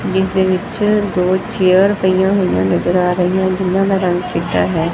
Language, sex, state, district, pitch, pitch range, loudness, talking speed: Punjabi, female, Punjab, Fazilka, 185 Hz, 180-190 Hz, -15 LUFS, 170 wpm